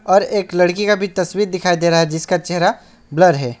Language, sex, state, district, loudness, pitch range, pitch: Hindi, male, West Bengal, Alipurduar, -16 LUFS, 170-200 Hz, 180 Hz